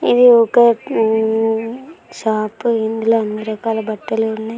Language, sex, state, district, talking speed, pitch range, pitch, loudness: Telugu, female, Andhra Pradesh, Anantapur, 105 wpm, 220-230 Hz, 225 Hz, -16 LUFS